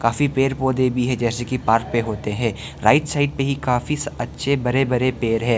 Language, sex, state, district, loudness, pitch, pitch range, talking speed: Hindi, male, Arunachal Pradesh, Lower Dibang Valley, -21 LUFS, 125 Hz, 115-135 Hz, 225 wpm